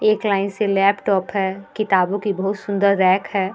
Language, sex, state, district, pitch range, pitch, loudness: Hindi, female, Bihar, Vaishali, 195-205 Hz, 200 Hz, -19 LUFS